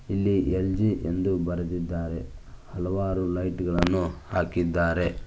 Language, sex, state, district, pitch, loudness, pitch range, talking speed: Kannada, male, Karnataka, Koppal, 90 Hz, -27 LUFS, 85-95 Hz, 90 wpm